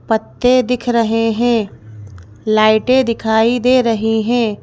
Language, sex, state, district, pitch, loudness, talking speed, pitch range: Hindi, female, Madhya Pradesh, Bhopal, 225 Hz, -14 LUFS, 115 wpm, 215-240 Hz